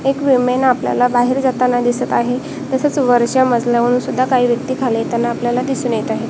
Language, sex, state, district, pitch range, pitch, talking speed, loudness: Marathi, female, Maharashtra, Washim, 240-260 Hz, 250 Hz, 180 wpm, -16 LUFS